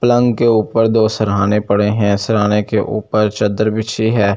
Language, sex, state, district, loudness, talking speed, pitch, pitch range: Hindi, male, Delhi, New Delhi, -15 LUFS, 205 wpm, 110 Hz, 105-110 Hz